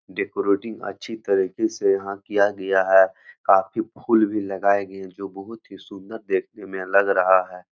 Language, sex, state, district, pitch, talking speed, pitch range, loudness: Hindi, male, Bihar, Jahanabad, 100 Hz, 170 wpm, 95-110 Hz, -21 LUFS